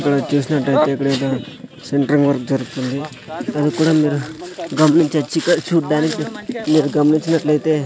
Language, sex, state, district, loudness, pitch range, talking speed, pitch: Telugu, male, Andhra Pradesh, Sri Satya Sai, -17 LUFS, 140-160 Hz, 105 wpm, 150 Hz